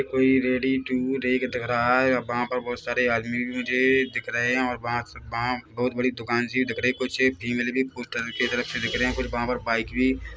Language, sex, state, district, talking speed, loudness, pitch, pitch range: Hindi, male, Chhattisgarh, Bilaspur, 230 wpm, -25 LUFS, 125 Hz, 120-130 Hz